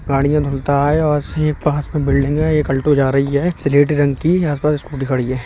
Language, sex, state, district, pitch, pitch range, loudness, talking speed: Hindi, male, Uttar Pradesh, Budaun, 145 Hz, 140-150 Hz, -16 LUFS, 240 wpm